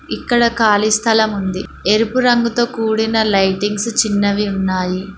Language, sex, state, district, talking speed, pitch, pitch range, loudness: Telugu, female, Telangana, Mahabubabad, 115 wpm, 215 Hz, 200-225 Hz, -15 LUFS